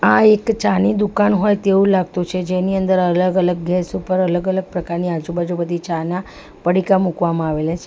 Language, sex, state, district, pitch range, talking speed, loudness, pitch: Gujarati, female, Gujarat, Valsad, 175-195 Hz, 170 wpm, -18 LUFS, 180 Hz